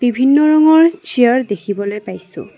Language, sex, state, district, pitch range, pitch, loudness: Assamese, female, Assam, Kamrup Metropolitan, 210-310 Hz, 255 Hz, -13 LUFS